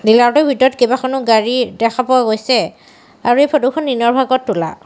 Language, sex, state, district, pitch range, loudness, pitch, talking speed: Assamese, female, Assam, Sonitpur, 235-265 Hz, -14 LUFS, 255 Hz, 185 wpm